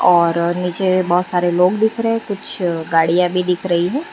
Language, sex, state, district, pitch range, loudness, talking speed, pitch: Hindi, female, Gujarat, Valsad, 175-190 Hz, -17 LUFS, 205 wpm, 180 Hz